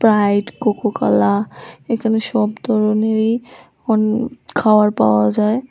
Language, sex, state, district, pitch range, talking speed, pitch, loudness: Bengali, female, Tripura, West Tripura, 205-225 Hz, 95 wpm, 215 Hz, -17 LUFS